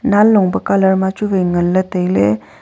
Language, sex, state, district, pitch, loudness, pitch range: Wancho, female, Arunachal Pradesh, Longding, 190 Hz, -14 LUFS, 175-195 Hz